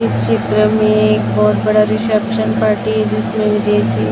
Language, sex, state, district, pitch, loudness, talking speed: Hindi, male, Chhattisgarh, Raipur, 110 Hz, -14 LUFS, 115 wpm